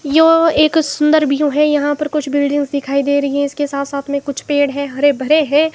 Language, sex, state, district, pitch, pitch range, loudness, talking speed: Hindi, female, Himachal Pradesh, Shimla, 290 Hz, 280-300 Hz, -15 LUFS, 240 wpm